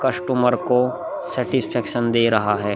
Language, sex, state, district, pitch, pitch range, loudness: Hindi, male, Bihar, Vaishali, 120 Hz, 110-125 Hz, -20 LUFS